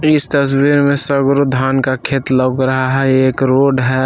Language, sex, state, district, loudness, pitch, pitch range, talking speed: Hindi, male, Jharkhand, Palamu, -13 LUFS, 135 Hz, 130-140 Hz, 205 wpm